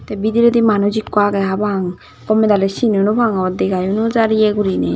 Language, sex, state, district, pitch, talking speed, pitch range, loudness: Chakma, female, Tripura, Dhalai, 210 Hz, 205 wpm, 195-220 Hz, -15 LUFS